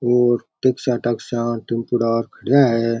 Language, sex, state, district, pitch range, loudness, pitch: Rajasthani, male, Rajasthan, Churu, 115-125 Hz, -19 LUFS, 120 Hz